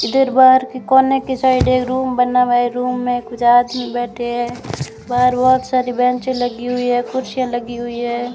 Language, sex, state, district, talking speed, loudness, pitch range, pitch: Hindi, female, Rajasthan, Bikaner, 210 wpm, -16 LUFS, 245-255 Hz, 250 Hz